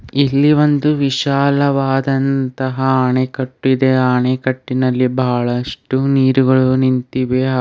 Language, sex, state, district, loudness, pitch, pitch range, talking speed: Kannada, male, Karnataka, Bidar, -15 LUFS, 130 Hz, 130-135 Hz, 95 wpm